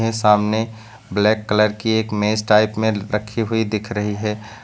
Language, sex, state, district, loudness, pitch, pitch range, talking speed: Hindi, male, Uttar Pradesh, Lucknow, -19 LUFS, 110 Hz, 105-110 Hz, 170 wpm